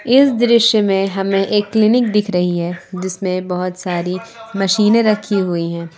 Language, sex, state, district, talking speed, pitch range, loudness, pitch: Hindi, female, Jharkhand, Palamu, 160 wpm, 180-215 Hz, -16 LUFS, 195 Hz